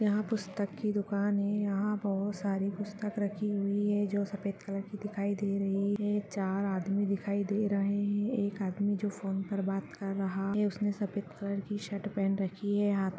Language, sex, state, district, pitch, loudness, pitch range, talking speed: Hindi, female, Bihar, Bhagalpur, 200 Hz, -33 LUFS, 195-205 Hz, 205 wpm